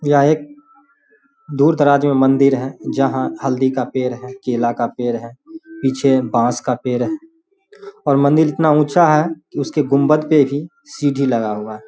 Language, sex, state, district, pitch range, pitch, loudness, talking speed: Hindi, male, Bihar, Samastipur, 125-160 Hz, 140 Hz, -17 LUFS, 175 wpm